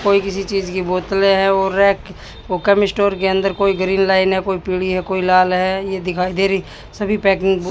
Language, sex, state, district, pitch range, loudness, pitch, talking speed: Hindi, female, Haryana, Jhajjar, 185-195 Hz, -17 LUFS, 195 Hz, 235 wpm